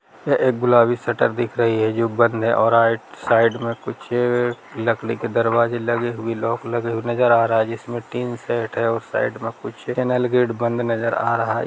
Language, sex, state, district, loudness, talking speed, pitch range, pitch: Hindi, male, Bihar, Sitamarhi, -20 LUFS, 215 wpm, 115-120 Hz, 115 Hz